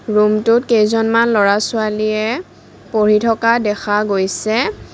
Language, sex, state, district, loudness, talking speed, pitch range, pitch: Assamese, female, Assam, Kamrup Metropolitan, -15 LUFS, 95 wpm, 210-230 Hz, 215 Hz